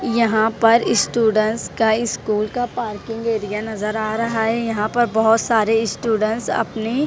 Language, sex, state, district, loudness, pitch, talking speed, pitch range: Hindi, female, Punjab, Kapurthala, -19 LUFS, 225 Hz, 160 wpm, 215-230 Hz